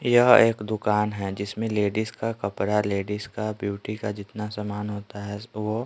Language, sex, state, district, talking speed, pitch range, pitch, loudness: Hindi, male, Bihar, Patna, 175 wpm, 100-110 Hz, 105 Hz, -25 LUFS